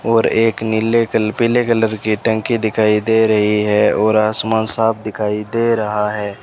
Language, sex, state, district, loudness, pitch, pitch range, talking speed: Hindi, male, Rajasthan, Bikaner, -15 LUFS, 110 Hz, 105-115 Hz, 175 wpm